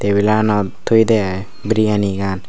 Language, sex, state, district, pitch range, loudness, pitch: Chakma, male, Tripura, Unakoti, 95-110 Hz, -16 LUFS, 105 Hz